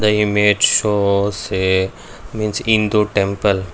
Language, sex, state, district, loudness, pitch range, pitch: English, male, Karnataka, Bangalore, -16 LUFS, 100-105 Hz, 105 Hz